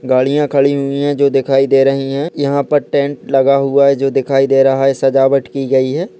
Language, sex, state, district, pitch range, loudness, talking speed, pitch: Hindi, male, Chhattisgarh, Raigarh, 135-140 Hz, -13 LUFS, 230 wpm, 135 Hz